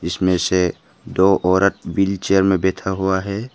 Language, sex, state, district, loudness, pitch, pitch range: Hindi, male, Arunachal Pradesh, Papum Pare, -18 LUFS, 95 Hz, 90-95 Hz